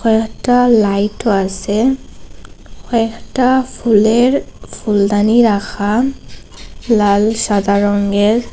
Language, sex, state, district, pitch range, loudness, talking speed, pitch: Bengali, female, Assam, Hailakandi, 205-240 Hz, -14 LUFS, 75 wpm, 220 Hz